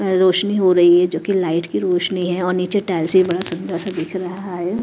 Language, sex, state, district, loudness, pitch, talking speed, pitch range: Hindi, female, Chhattisgarh, Raipur, -18 LUFS, 180 Hz, 250 wpm, 175-190 Hz